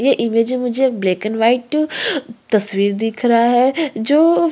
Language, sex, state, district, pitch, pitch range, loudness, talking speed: Hindi, female, Chhattisgarh, Korba, 245 Hz, 220-280 Hz, -16 LUFS, 170 wpm